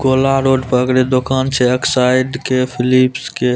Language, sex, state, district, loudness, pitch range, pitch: Maithili, male, Bihar, Purnia, -14 LUFS, 125-130 Hz, 130 Hz